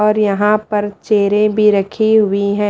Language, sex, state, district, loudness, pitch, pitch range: Hindi, female, Haryana, Rohtak, -14 LUFS, 210 Hz, 205-215 Hz